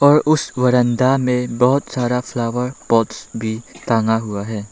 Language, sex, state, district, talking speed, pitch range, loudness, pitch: Hindi, male, Arunachal Pradesh, Lower Dibang Valley, 150 wpm, 115-125 Hz, -18 LUFS, 125 Hz